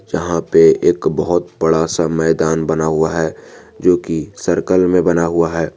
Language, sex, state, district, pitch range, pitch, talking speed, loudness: Hindi, male, Jharkhand, Garhwa, 80-90 Hz, 85 Hz, 175 wpm, -15 LUFS